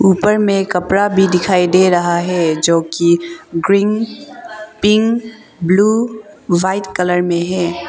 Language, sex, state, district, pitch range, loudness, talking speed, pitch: Hindi, female, Arunachal Pradesh, Longding, 175-210 Hz, -14 LUFS, 130 wpm, 185 Hz